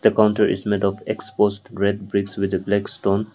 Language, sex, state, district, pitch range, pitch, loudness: English, male, Nagaland, Kohima, 100-105 Hz, 100 Hz, -21 LUFS